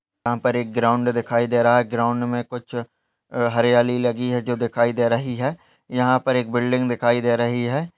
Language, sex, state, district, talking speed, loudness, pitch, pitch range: Hindi, male, Goa, North and South Goa, 210 wpm, -21 LUFS, 120 Hz, 120-125 Hz